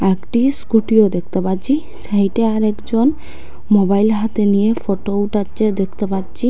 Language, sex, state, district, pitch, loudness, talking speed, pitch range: Bengali, female, Assam, Hailakandi, 210 Hz, -17 LUFS, 120 wpm, 195-225 Hz